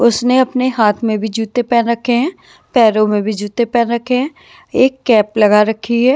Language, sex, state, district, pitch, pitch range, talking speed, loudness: Hindi, female, Himachal Pradesh, Shimla, 235 Hz, 215-250 Hz, 205 wpm, -14 LUFS